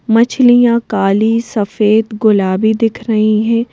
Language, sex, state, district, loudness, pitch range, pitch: Hindi, female, Madhya Pradesh, Bhopal, -12 LUFS, 215-230 Hz, 220 Hz